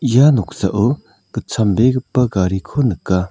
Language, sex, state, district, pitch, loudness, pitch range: Garo, male, Meghalaya, South Garo Hills, 120 Hz, -16 LUFS, 95-130 Hz